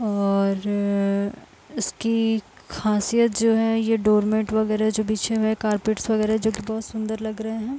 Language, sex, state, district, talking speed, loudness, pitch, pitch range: Hindi, female, Uttar Pradesh, Deoria, 155 wpm, -23 LUFS, 220 Hz, 210-225 Hz